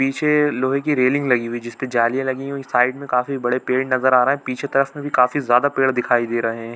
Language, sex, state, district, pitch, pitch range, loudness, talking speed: Hindi, male, Chhattisgarh, Bilaspur, 130 Hz, 125-140 Hz, -19 LUFS, 285 wpm